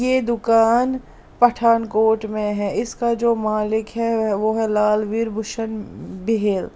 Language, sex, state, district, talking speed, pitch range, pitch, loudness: Hindi, female, Punjab, Pathankot, 125 wpm, 215-230 Hz, 225 Hz, -20 LUFS